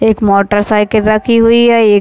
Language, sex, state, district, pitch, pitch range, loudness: Hindi, female, Chhattisgarh, Raigarh, 215 Hz, 205-230 Hz, -10 LUFS